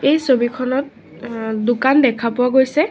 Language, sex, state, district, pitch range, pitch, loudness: Assamese, female, Assam, Sonitpur, 240-275 Hz, 255 Hz, -17 LUFS